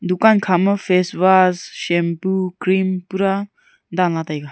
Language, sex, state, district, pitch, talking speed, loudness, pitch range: Wancho, female, Arunachal Pradesh, Longding, 185 Hz, 145 wpm, -18 LUFS, 175-195 Hz